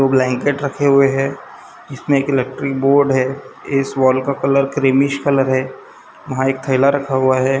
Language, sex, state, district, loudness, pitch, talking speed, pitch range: Hindi, male, Maharashtra, Gondia, -16 LUFS, 135 Hz, 175 wpm, 130-140 Hz